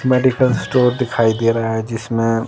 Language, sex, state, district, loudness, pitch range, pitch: Hindi, female, Himachal Pradesh, Shimla, -17 LUFS, 115-130 Hz, 115 Hz